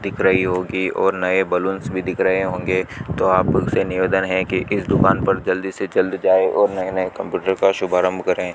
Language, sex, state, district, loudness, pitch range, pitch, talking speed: Hindi, male, Rajasthan, Bikaner, -19 LUFS, 90-95 Hz, 95 Hz, 220 wpm